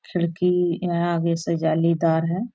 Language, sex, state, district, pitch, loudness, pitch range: Maithili, female, Bihar, Araria, 170 Hz, -22 LUFS, 165-175 Hz